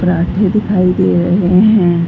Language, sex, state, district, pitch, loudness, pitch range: Hindi, female, Bihar, Saran, 185 Hz, -12 LUFS, 175-195 Hz